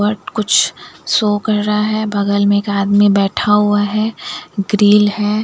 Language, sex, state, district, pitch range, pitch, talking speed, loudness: Hindi, female, Bihar, Katihar, 200-210 Hz, 205 Hz, 165 wpm, -14 LUFS